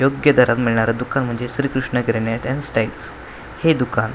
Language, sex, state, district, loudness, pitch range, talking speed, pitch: Marathi, male, Maharashtra, Washim, -19 LUFS, 115-135 Hz, 190 wpm, 125 Hz